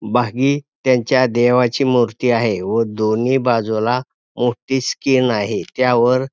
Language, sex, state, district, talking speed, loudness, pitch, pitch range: Marathi, male, Maharashtra, Pune, 125 wpm, -17 LUFS, 125 Hz, 120-130 Hz